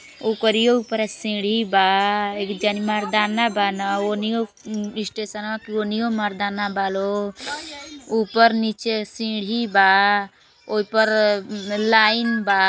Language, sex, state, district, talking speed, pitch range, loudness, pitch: Bhojpuri, female, Uttar Pradesh, Gorakhpur, 115 wpm, 205-225 Hz, -21 LUFS, 215 Hz